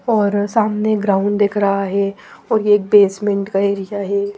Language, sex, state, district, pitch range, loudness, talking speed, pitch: Hindi, female, Punjab, Pathankot, 200-210 Hz, -16 LUFS, 180 wpm, 205 Hz